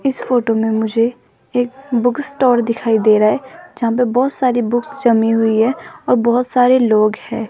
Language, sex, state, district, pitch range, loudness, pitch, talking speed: Hindi, female, Rajasthan, Jaipur, 225-255 Hz, -15 LUFS, 240 Hz, 190 wpm